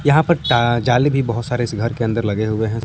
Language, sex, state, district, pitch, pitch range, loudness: Hindi, male, Jharkhand, Palamu, 120 Hz, 115-130 Hz, -18 LUFS